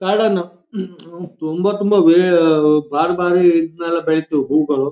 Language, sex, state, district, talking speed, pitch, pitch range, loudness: Kannada, male, Karnataka, Shimoga, 75 wpm, 170 Hz, 155-180 Hz, -15 LUFS